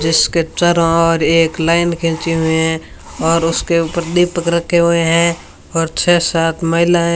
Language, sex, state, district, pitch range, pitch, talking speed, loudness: Hindi, female, Rajasthan, Bikaner, 165-170 Hz, 165 Hz, 170 wpm, -14 LUFS